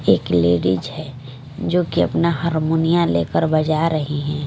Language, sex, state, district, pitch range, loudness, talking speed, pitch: Hindi, female, Bihar, Patna, 130-160 Hz, -19 LUFS, 145 wpm, 155 Hz